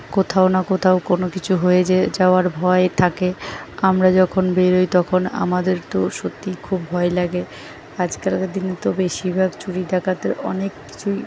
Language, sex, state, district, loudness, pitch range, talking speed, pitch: Bengali, female, West Bengal, North 24 Parganas, -19 LUFS, 180-185 Hz, 150 wpm, 185 Hz